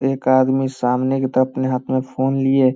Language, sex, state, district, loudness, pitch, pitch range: Hindi, male, Bihar, Samastipur, -18 LUFS, 130 Hz, 130-135 Hz